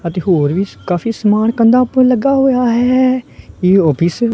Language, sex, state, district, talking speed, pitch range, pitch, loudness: Punjabi, male, Punjab, Kapurthala, 180 wpm, 180-250 Hz, 230 Hz, -13 LUFS